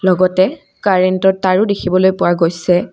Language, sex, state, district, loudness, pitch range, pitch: Assamese, female, Assam, Kamrup Metropolitan, -14 LUFS, 180-190 Hz, 185 Hz